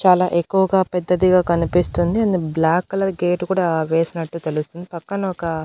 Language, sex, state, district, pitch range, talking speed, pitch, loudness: Telugu, female, Andhra Pradesh, Annamaya, 165-185 Hz, 140 wpm, 175 Hz, -19 LUFS